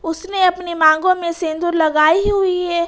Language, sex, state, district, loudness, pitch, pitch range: Hindi, female, Jharkhand, Ranchi, -16 LUFS, 345 Hz, 325-365 Hz